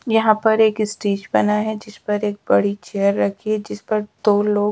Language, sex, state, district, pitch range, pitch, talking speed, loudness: Hindi, female, Bihar, Patna, 205-215 Hz, 210 Hz, 215 wpm, -19 LUFS